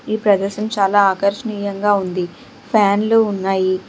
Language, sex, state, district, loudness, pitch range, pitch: Telugu, female, Telangana, Hyderabad, -17 LUFS, 195-210 Hz, 200 Hz